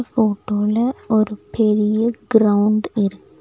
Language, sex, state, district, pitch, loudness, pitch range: Tamil, female, Tamil Nadu, Nilgiris, 215 Hz, -18 LUFS, 210-225 Hz